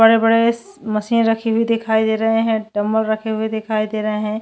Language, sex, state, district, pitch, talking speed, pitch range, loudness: Hindi, female, Chhattisgarh, Jashpur, 220 Hz, 215 wpm, 215-225 Hz, -18 LUFS